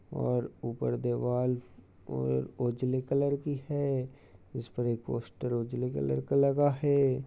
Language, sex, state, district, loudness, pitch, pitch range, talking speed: Hindi, male, Uttar Pradesh, Jyotiba Phule Nagar, -31 LUFS, 125 Hz, 90-135 Hz, 140 wpm